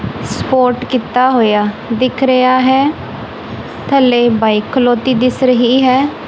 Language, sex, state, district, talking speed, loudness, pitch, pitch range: Punjabi, female, Punjab, Kapurthala, 115 wpm, -12 LUFS, 255 Hz, 240-260 Hz